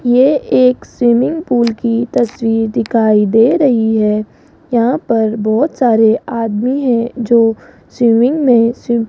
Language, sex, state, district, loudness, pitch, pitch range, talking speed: Hindi, female, Rajasthan, Jaipur, -13 LUFS, 235 Hz, 225-250 Hz, 140 wpm